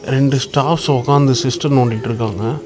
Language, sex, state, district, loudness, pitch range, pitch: Tamil, male, Tamil Nadu, Namakkal, -15 LUFS, 120-140 Hz, 135 Hz